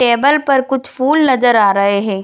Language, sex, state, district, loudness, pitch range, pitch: Hindi, female, Bihar, Jamui, -13 LUFS, 200-270 Hz, 250 Hz